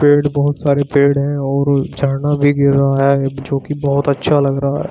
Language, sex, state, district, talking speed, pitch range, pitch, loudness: Hindi, male, Uttar Pradesh, Shamli, 220 wpm, 140-145 Hz, 140 Hz, -15 LUFS